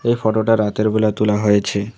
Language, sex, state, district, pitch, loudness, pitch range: Bengali, male, West Bengal, Alipurduar, 110 Hz, -17 LUFS, 105-110 Hz